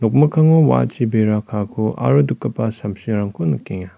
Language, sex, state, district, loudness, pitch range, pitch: Garo, male, Meghalaya, West Garo Hills, -17 LUFS, 100-135 Hz, 110 Hz